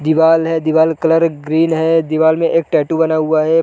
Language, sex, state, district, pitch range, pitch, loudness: Hindi, male, Chhattisgarh, Raigarh, 160-165 Hz, 160 Hz, -14 LUFS